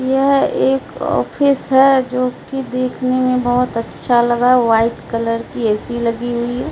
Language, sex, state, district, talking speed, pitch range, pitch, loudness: Hindi, female, Bihar, Katihar, 160 wpm, 235-265 Hz, 250 Hz, -16 LUFS